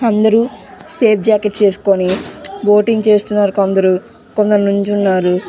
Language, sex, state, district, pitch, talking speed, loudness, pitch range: Telugu, female, Andhra Pradesh, Visakhapatnam, 205 Hz, 100 wpm, -14 LUFS, 195-215 Hz